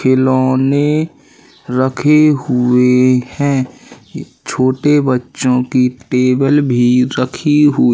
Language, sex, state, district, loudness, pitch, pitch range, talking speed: Hindi, male, Madhya Pradesh, Katni, -13 LUFS, 130 Hz, 125-145 Hz, 85 wpm